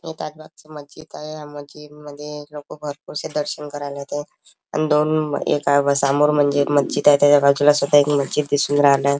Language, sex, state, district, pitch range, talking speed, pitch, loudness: Marathi, male, Maharashtra, Chandrapur, 145-150 Hz, 165 wpm, 145 Hz, -19 LUFS